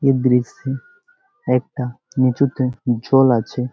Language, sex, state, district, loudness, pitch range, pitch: Bengali, male, West Bengal, Jalpaiguri, -19 LUFS, 125-140 Hz, 130 Hz